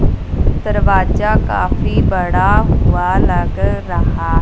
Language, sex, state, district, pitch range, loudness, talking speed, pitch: Hindi, female, Punjab, Fazilka, 80-95 Hz, -15 LUFS, 80 wpm, 85 Hz